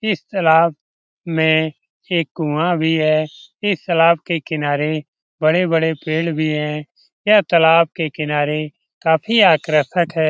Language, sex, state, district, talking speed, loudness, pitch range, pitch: Hindi, male, Bihar, Lakhisarai, 130 wpm, -17 LUFS, 155-170 Hz, 160 Hz